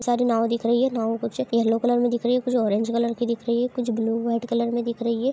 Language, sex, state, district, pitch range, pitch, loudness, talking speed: Hindi, female, Bihar, Madhepura, 230-240 Hz, 235 Hz, -23 LUFS, 315 wpm